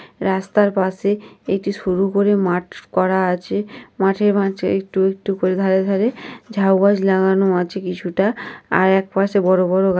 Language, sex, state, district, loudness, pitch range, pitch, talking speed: Bengali, female, West Bengal, North 24 Parganas, -18 LUFS, 190-200 Hz, 195 Hz, 155 wpm